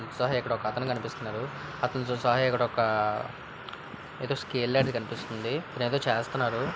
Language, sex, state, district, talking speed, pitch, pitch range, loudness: Telugu, male, Andhra Pradesh, Visakhapatnam, 105 wpm, 125 Hz, 115-125 Hz, -29 LUFS